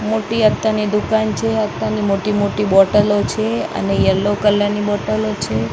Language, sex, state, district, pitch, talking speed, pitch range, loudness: Gujarati, female, Maharashtra, Mumbai Suburban, 210 Hz, 155 wpm, 205-215 Hz, -17 LUFS